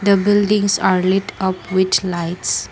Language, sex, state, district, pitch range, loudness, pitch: English, female, Assam, Kamrup Metropolitan, 180-200 Hz, -17 LUFS, 190 Hz